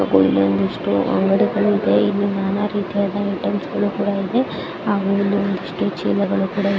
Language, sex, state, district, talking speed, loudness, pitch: Kannada, female, Karnataka, Chamarajanagar, 150 wpm, -19 LUFS, 195 Hz